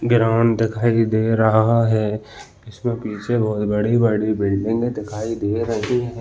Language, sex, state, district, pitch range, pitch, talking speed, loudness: Hindi, male, Chhattisgarh, Balrampur, 105-115 Hz, 110 Hz, 155 wpm, -19 LUFS